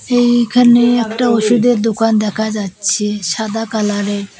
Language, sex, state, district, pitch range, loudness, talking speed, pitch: Bengali, female, West Bengal, Cooch Behar, 210-240 Hz, -14 LUFS, 125 wpm, 220 Hz